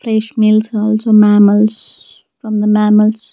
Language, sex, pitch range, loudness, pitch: English, female, 210-220 Hz, -11 LUFS, 215 Hz